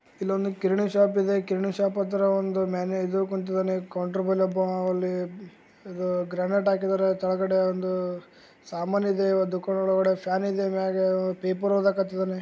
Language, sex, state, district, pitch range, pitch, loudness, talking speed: Kannada, male, Karnataka, Gulbarga, 185-195 Hz, 190 Hz, -26 LUFS, 95 wpm